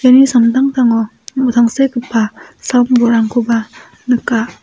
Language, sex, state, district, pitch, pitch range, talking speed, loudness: Garo, female, Meghalaya, South Garo Hills, 240 Hz, 230-255 Hz, 65 wpm, -13 LUFS